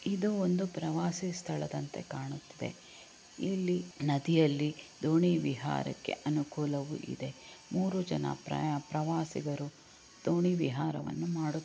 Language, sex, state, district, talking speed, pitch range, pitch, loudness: Kannada, female, Karnataka, Raichur, 95 wpm, 145-175 Hz, 160 Hz, -34 LUFS